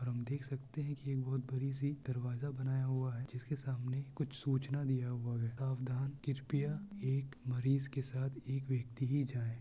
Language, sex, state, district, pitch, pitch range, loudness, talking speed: Hindi, male, Bihar, Kishanganj, 130 Hz, 130-140 Hz, -39 LUFS, 200 wpm